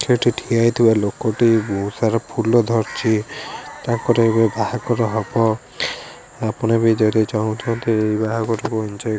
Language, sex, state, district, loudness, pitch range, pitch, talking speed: Odia, male, Odisha, Khordha, -19 LUFS, 110-115 Hz, 115 Hz, 150 wpm